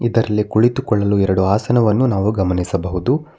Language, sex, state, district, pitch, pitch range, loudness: Kannada, male, Karnataka, Bangalore, 105 Hz, 95-120 Hz, -17 LUFS